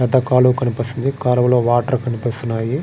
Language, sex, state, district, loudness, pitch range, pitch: Telugu, male, Andhra Pradesh, Srikakulam, -17 LUFS, 120-125 Hz, 125 Hz